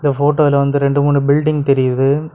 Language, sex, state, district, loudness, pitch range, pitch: Tamil, male, Tamil Nadu, Kanyakumari, -14 LUFS, 140-145 Hz, 140 Hz